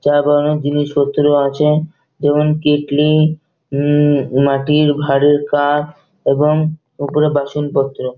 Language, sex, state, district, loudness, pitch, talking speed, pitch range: Bengali, male, West Bengal, North 24 Parganas, -15 LUFS, 145 Hz, 95 wpm, 145-150 Hz